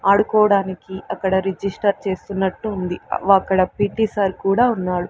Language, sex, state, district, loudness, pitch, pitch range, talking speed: Telugu, female, Andhra Pradesh, Sri Satya Sai, -19 LUFS, 195 Hz, 190-205 Hz, 140 wpm